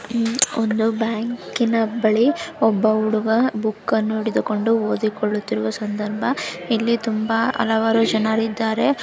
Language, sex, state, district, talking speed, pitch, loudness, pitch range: Kannada, female, Karnataka, Bellary, 95 wpm, 225 Hz, -20 LUFS, 215-230 Hz